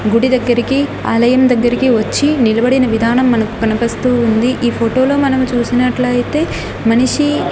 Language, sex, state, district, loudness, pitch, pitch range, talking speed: Telugu, female, Andhra Pradesh, Annamaya, -13 LUFS, 245 Hz, 230-260 Hz, 120 wpm